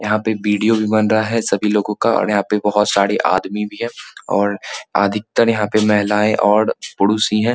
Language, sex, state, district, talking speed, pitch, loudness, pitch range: Hindi, male, Bihar, Muzaffarpur, 215 wpm, 105 Hz, -17 LUFS, 105-110 Hz